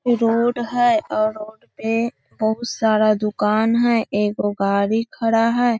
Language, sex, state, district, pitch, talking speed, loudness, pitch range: Magahi, female, Bihar, Lakhisarai, 225 Hz, 145 wpm, -19 LUFS, 215-235 Hz